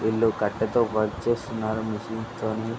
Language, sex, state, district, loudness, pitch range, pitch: Telugu, male, Andhra Pradesh, Srikakulam, -26 LUFS, 110-115 Hz, 110 Hz